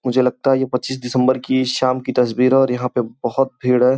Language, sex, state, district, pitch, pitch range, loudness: Hindi, male, Uttar Pradesh, Gorakhpur, 130 Hz, 125-130 Hz, -18 LUFS